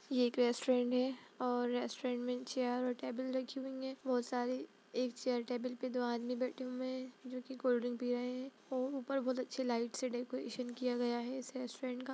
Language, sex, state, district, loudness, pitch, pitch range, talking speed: Hindi, female, Bihar, Jahanabad, -39 LUFS, 250 Hz, 245-255 Hz, 220 wpm